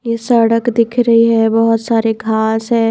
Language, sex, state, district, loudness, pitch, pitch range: Hindi, female, Haryana, Charkhi Dadri, -13 LUFS, 230 Hz, 225-230 Hz